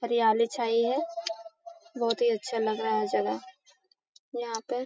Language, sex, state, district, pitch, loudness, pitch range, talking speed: Hindi, female, Bihar, Lakhisarai, 240 Hz, -29 LUFS, 230-330 Hz, 160 wpm